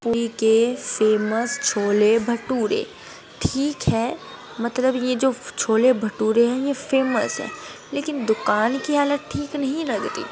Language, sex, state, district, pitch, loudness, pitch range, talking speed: Hindi, female, Uttar Pradesh, Etah, 245 Hz, -21 LUFS, 220-270 Hz, 120 wpm